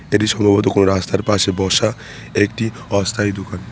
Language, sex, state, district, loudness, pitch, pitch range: Bengali, male, West Bengal, Cooch Behar, -17 LUFS, 100 Hz, 95-105 Hz